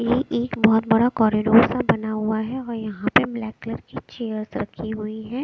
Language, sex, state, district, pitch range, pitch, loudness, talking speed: Hindi, female, Bihar, West Champaran, 220-240 Hz, 225 Hz, -22 LUFS, 210 wpm